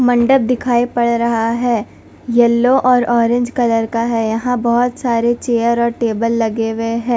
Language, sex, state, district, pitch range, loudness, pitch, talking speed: Hindi, female, Punjab, Fazilka, 230-245 Hz, -15 LUFS, 235 Hz, 165 wpm